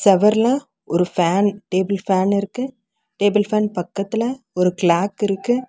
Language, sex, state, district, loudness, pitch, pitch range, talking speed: Tamil, female, Tamil Nadu, Chennai, -19 LUFS, 200 Hz, 190-225 Hz, 125 wpm